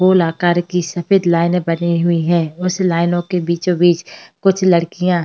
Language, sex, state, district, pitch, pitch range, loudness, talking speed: Hindi, female, Uttar Pradesh, Hamirpur, 175 Hz, 170-180 Hz, -16 LUFS, 185 wpm